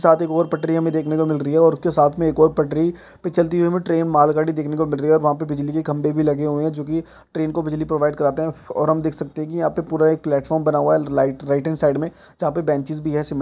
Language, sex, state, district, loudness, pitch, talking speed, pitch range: Hindi, male, Chhattisgarh, Sukma, -20 LUFS, 155 Hz, 315 wpm, 150-165 Hz